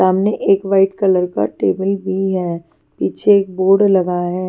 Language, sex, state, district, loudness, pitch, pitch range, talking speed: Hindi, female, Haryana, Charkhi Dadri, -16 LUFS, 190 Hz, 180-195 Hz, 175 wpm